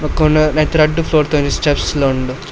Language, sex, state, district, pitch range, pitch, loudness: Tulu, male, Karnataka, Dakshina Kannada, 145-155 Hz, 150 Hz, -14 LUFS